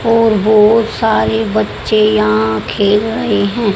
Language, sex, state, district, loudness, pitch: Hindi, male, Haryana, Jhajjar, -12 LUFS, 205 Hz